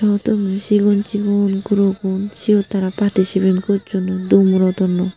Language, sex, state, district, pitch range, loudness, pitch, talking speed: Chakma, female, Tripura, Unakoti, 190-205 Hz, -17 LUFS, 195 Hz, 95 wpm